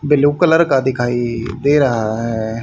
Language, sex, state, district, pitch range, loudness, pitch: Hindi, male, Haryana, Jhajjar, 115-145 Hz, -16 LUFS, 120 Hz